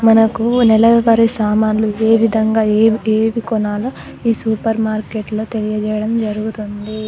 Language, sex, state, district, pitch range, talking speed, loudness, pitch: Telugu, female, Telangana, Nalgonda, 215-225 Hz, 110 wpm, -15 LUFS, 220 Hz